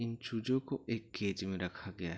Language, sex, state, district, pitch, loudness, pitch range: Hindi, male, Chhattisgarh, Bilaspur, 110 Hz, -38 LUFS, 95-115 Hz